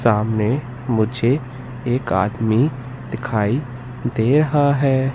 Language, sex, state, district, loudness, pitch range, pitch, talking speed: Hindi, male, Madhya Pradesh, Katni, -20 LUFS, 115-135 Hz, 125 Hz, 95 wpm